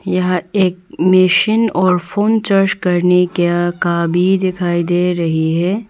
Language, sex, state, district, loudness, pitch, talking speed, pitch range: Hindi, female, Arunachal Pradesh, Papum Pare, -14 LUFS, 180 Hz, 145 wpm, 175-195 Hz